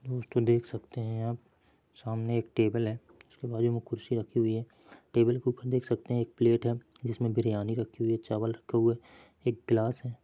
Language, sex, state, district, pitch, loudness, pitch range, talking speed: Hindi, male, Chhattisgarh, Bilaspur, 115 Hz, -31 LUFS, 115-120 Hz, 215 wpm